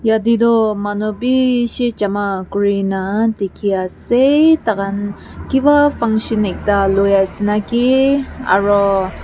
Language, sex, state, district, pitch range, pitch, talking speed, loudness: Nagamese, female, Nagaland, Kohima, 200-240 Hz, 210 Hz, 115 wpm, -15 LUFS